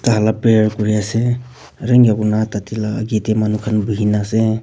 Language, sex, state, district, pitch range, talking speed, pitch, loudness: Nagamese, male, Nagaland, Kohima, 105-110 Hz, 245 wpm, 110 Hz, -16 LUFS